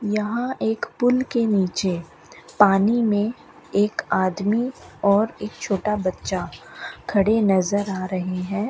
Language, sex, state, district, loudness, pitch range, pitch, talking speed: Hindi, female, Rajasthan, Bikaner, -22 LUFS, 195-220 Hz, 205 Hz, 125 wpm